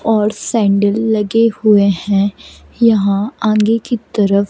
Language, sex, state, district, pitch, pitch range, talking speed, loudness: Hindi, female, Madhya Pradesh, Katni, 210 Hz, 200-225 Hz, 120 wpm, -14 LUFS